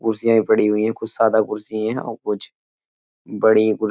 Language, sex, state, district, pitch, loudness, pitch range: Hindi, male, Uttar Pradesh, Etah, 110 Hz, -19 LUFS, 105-115 Hz